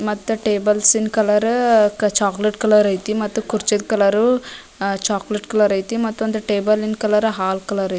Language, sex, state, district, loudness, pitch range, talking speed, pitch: Kannada, female, Karnataka, Dharwad, -18 LUFS, 205-220 Hz, 150 wpm, 210 Hz